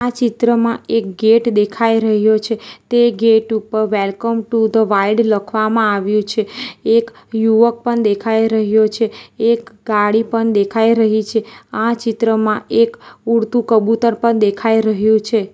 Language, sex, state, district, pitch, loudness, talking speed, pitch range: Gujarati, female, Gujarat, Valsad, 225 Hz, -15 LUFS, 145 wpm, 215-230 Hz